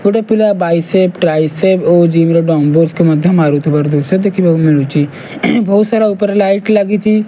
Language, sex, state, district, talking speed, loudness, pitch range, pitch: Odia, male, Odisha, Malkangiri, 140 wpm, -11 LUFS, 160-205 Hz, 180 Hz